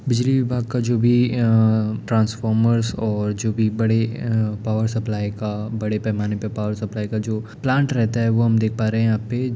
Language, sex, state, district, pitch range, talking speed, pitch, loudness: Hindi, male, Bihar, Darbhanga, 110-115 Hz, 205 wpm, 110 Hz, -21 LUFS